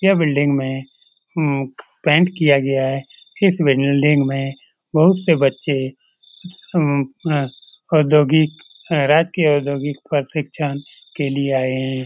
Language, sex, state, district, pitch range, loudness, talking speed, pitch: Hindi, male, Bihar, Lakhisarai, 135-155 Hz, -18 LUFS, 120 wpm, 145 Hz